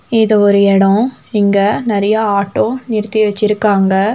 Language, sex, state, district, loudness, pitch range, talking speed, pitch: Tamil, female, Tamil Nadu, Nilgiris, -13 LUFS, 200-220 Hz, 115 wpm, 210 Hz